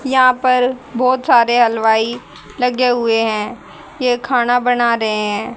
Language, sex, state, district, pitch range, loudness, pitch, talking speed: Hindi, female, Haryana, Rohtak, 230-250 Hz, -15 LUFS, 245 Hz, 140 wpm